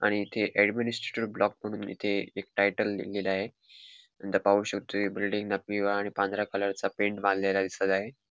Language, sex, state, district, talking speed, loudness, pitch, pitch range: Marathi, male, Goa, North and South Goa, 165 wpm, -29 LUFS, 100 Hz, 100-105 Hz